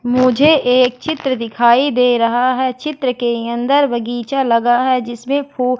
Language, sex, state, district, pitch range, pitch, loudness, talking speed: Hindi, female, Madhya Pradesh, Katni, 240-270 Hz, 250 Hz, -15 LUFS, 155 wpm